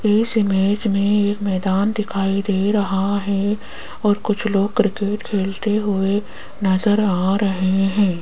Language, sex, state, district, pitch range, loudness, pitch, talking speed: Hindi, female, Rajasthan, Jaipur, 195-210 Hz, -19 LUFS, 200 Hz, 140 wpm